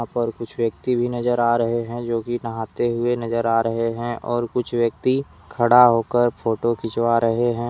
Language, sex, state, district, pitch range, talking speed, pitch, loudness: Hindi, male, Jharkhand, Deoghar, 115-120 Hz, 195 wpm, 120 Hz, -21 LUFS